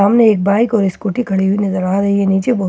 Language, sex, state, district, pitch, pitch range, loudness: Hindi, female, Bihar, Katihar, 200 Hz, 195-220 Hz, -14 LUFS